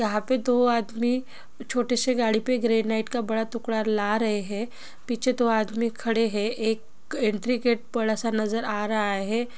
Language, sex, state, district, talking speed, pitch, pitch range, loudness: Hindi, female, Bihar, Jahanabad, 190 wpm, 230 Hz, 220-245 Hz, -25 LUFS